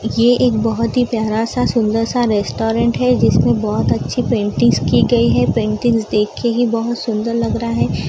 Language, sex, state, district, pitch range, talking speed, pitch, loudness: Hindi, female, Maharashtra, Gondia, 215-235 Hz, 195 wpm, 230 Hz, -16 LUFS